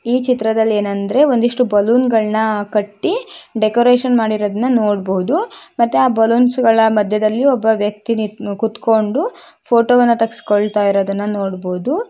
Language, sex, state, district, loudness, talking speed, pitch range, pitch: Kannada, female, Karnataka, Shimoga, -15 LUFS, 120 wpm, 210-245 Hz, 225 Hz